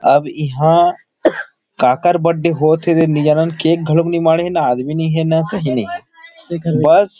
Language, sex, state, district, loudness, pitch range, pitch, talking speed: Chhattisgarhi, male, Chhattisgarh, Rajnandgaon, -15 LUFS, 155-170 Hz, 165 Hz, 200 wpm